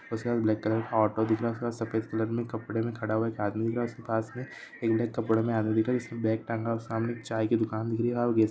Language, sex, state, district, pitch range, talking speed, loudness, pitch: Hindi, male, Chhattisgarh, Sarguja, 110-115 Hz, 245 wpm, -29 LUFS, 115 Hz